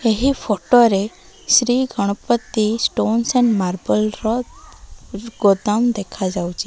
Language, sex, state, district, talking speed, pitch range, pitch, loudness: Odia, female, Odisha, Malkangiri, 110 wpm, 200-245 Hz, 225 Hz, -18 LUFS